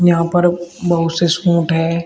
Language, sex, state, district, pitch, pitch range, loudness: Hindi, male, Uttar Pradesh, Shamli, 170 Hz, 165-175 Hz, -15 LUFS